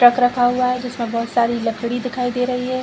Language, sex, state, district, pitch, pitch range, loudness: Hindi, female, Chhattisgarh, Bilaspur, 245 Hz, 235-250 Hz, -19 LUFS